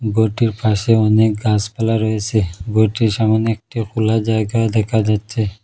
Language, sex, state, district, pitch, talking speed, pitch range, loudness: Bengali, male, Assam, Hailakandi, 110 Hz, 130 wpm, 105-110 Hz, -17 LUFS